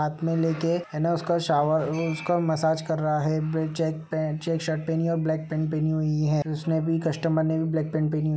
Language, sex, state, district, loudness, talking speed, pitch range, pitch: Hindi, male, Uttar Pradesh, Budaun, -26 LUFS, 260 wpm, 155-165 Hz, 160 Hz